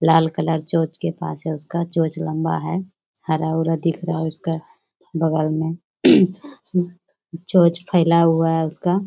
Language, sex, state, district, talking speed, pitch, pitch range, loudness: Hindi, female, Bihar, Jamui, 150 wpm, 165 Hz, 160-175 Hz, -20 LUFS